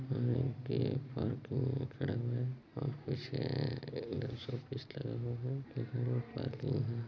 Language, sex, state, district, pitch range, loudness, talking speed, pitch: Hindi, male, Chhattisgarh, Bilaspur, 125-135 Hz, -38 LUFS, 145 wpm, 130 Hz